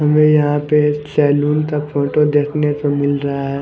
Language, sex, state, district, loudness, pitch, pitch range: Hindi, male, Punjab, Kapurthala, -16 LUFS, 145 Hz, 145-150 Hz